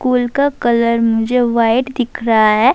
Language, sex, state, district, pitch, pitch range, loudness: Urdu, female, Bihar, Saharsa, 235 Hz, 230-250 Hz, -14 LUFS